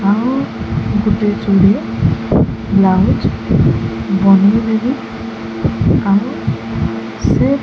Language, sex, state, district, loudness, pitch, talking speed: Odia, female, Odisha, Sambalpur, -15 LUFS, 190 Hz, 70 wpm